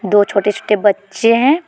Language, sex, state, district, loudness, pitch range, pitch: Hindi, female, Jharkhand, Deoghar, -14 LUFS, 200-230 Hz, 205 Hz